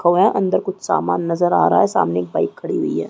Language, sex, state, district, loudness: Hindi, female, Chhattisgarh, Rajnandgaon, -18 LUFS